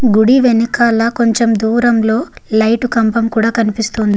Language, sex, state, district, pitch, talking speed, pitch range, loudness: Telugu, female, Andhra Pradesh, Guntur, 230 Hz, 115 wpm, 220-235 Hz, -13 LUFS